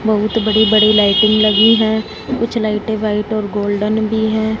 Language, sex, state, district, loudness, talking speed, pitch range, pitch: Hindi, female, Punjab, Fazilka, -14 LUFS, 170 wpm, 215-220 Hz, 215 Hz